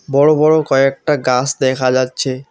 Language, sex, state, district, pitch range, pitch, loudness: Bengali, male, West Bengal, Alipurduar, 130-150 Hz, 135 Hz, -14 LUFS